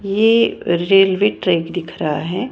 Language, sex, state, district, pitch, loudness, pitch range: Hindi, female, Haryana, Jhajjar, 185 Hz, -16 LUFS, 170-205 Hz